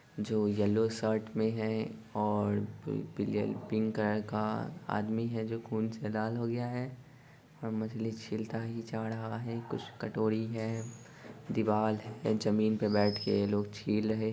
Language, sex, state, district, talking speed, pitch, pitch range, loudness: Hindi, male, Bihar, Sitamarhi, 170 wpm, 110 Hz, 105-115 Hz, -34 LUFS